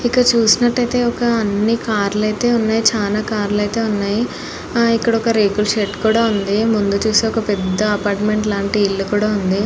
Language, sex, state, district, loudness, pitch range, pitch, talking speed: Telugu, female, Andhra Pradesh, Anantapur, -16 LUFS, 205-230 Hz, 215 Hz, 80 wpm